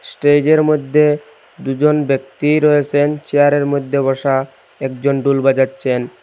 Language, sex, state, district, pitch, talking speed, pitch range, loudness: Bengali, male, Assam, Hailakandi, 145 Hz, 105 wpm, 135-150 Hz, -15 LUFS